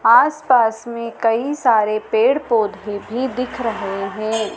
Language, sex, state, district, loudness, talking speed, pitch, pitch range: Hindi, female, Madhya Pradesh, Dhar, -18 LUFS, 130 wpm, 230 Hz, 215-255 Hz